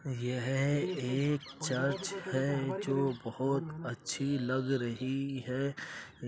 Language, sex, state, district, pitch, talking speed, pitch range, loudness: Hindi, male, Uttar Pradesh, Jyotiba Phule Nagar, 135 Hz, 115 wpm, 130-140 Hz, -34 LUFS